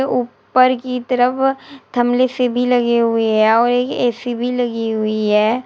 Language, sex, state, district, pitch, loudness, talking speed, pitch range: Hindi, female, Uttar Pradesh, Shamli, 245 Hz, -16 LUFS, 160 wpm, 230-255 Hz